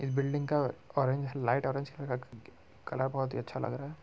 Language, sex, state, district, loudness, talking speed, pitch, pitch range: Hindi, male, Bihar, Muzaffarpur, -34 LUFS, 195 wpm, 135 Hz, 130-140 Hz